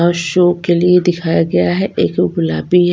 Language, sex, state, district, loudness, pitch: Hindi, female, Punjab, Kapurthala, -14 LUFS, 175 Hz